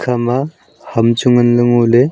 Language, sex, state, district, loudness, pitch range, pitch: Wancho, male, Arunachal Pradesh, Longding, -13 LUFS, 120-125 Hz, 120 Hz